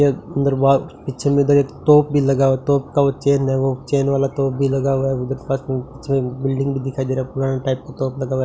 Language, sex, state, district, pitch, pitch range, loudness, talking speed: Hindi, male, Rajasthan, Bikaner, 135 Hz, 135-140 Hz, -19 LUFS, 310 wpm